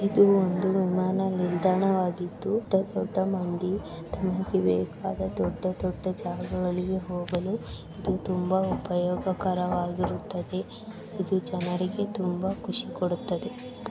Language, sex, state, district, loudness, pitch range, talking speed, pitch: Kannada, female, Karnataka, Belgaum, -28 LUFS, 180-195 Hz, 85 wpm, 185 Hz